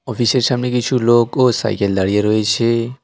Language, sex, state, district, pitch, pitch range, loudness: Bengali, male, West Bengal, Alipurduar, 120 Hz, 110-125 Hz, -16 LUFS